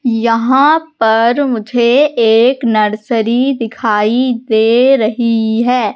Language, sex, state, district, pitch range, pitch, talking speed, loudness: Hindi, female, Madhya Pradesh, Katni, 225-255 Hz, 235 Hz, 90 wpm, -12 LUFS